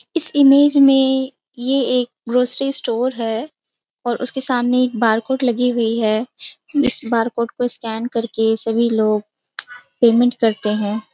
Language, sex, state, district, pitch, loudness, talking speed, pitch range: Hindi, female, Bihar, Jamui, 245 Hz, -16 LUFS, 150 wpm, 225-265 Hz